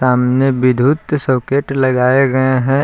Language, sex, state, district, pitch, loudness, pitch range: Hindi, male, Jharkhand, Palamu, 130 Hz, -14 LUFS, 125-135 Hz